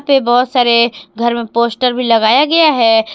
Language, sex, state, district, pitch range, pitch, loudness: Hindi, female, Jharkhand, Palamu, 235-255 Hz, 240 Hz, -12 LUFS